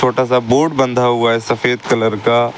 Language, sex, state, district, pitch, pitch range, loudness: Hindi, male, Uttar Pradesh, Lucknow, 125 Hz, 120-130 Hz, -15 LUFS